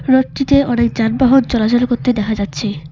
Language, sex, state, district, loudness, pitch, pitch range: Bengali, female, West Bengal, Cooch Behar, -15 LUFS, 240 Hz, 220-260 Hz